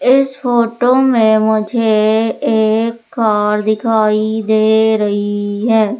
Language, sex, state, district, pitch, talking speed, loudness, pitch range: Hindi, female, Madhya Pradesh, Umaria, 220 Hz, 100 wpm, -13 LUFS, 215-230 Hz